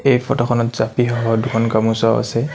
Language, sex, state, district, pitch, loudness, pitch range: Assamese, male, Assam, Kamrup Metropolitan, 115 Hz, -17 LUFS, 115-125 Hz